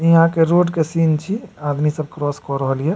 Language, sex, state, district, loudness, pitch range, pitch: Maithili, male, Bihar, Supaul, -18 LUFS, 145-165 Hz, 160 Hz